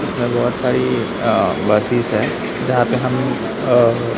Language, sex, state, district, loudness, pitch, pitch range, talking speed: Hindi, male, Maharashtra, Mumbai Suburban, -17 LUFS, 120 Hz, 110-125 Hz, 145 wpm